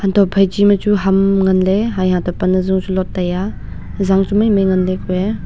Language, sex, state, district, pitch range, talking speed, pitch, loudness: Wancho, female, Arunachal Pradesh, Longding, 185-200 Hz, 240 wpm, 190 Hz, -15 LUFS